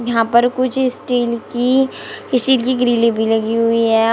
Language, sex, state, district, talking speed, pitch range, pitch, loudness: Hindi, female, Uttar Pradesh, Shamli, 190 wpm, 230-255 Hz, 240 Hz, -16 LUFS